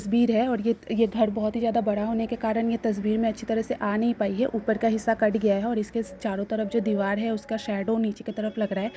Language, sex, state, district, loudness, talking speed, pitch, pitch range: Hindi, female, Bihar, Kishanganj, -26 LUFS, 285 wpm, 220 Hz, 215-230 Hz